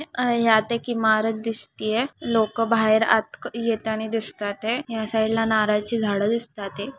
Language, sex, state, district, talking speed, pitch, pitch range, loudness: Marathi, female, Maharashtra, Aurangabad, 145 wpm, 225 Hz, 215-230 Hz, -23 LUFS